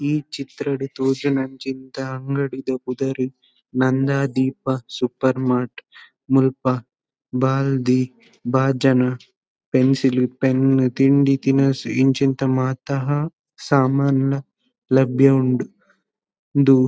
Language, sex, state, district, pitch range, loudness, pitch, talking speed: Tulu, male, Karnataka, Dakshina Kannada, 130-135 Hz, -20 LUFS, 135 Hz, 85 wpm